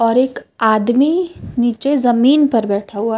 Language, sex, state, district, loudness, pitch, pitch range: Hindi, female, Chhattisgarh, Raipur, -15 LUFS, 240 Hz, 225-275 Hz